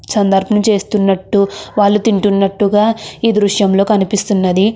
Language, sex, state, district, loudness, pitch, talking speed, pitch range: Telugu, female, Andhra Pradesh, Krishna, -13 LUFS, 205 Hz, 75 wpm, 195-210 Hz